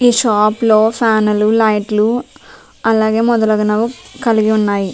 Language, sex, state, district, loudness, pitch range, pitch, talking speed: Telugu, female, Telangana, Nalgonda, -14 LUFS, 215-235 Hz, 220 Hz, 135 wpm